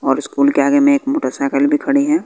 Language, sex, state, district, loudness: Hindi, female, Bihar, West Champaran, -15 LUFS